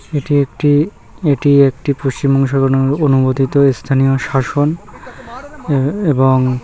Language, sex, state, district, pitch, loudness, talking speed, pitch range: Bengali, male, West Bengal, North 24 Parganas, 140 Hz, -14 LUFS, 80 wpm, 135-145 Hz